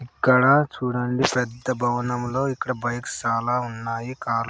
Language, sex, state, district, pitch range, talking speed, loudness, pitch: Telugu, male, Andhra Pradesh, Sri Satya Sai, 120-130 Hz, 135 wpm, -23 LUFS, 125 Hz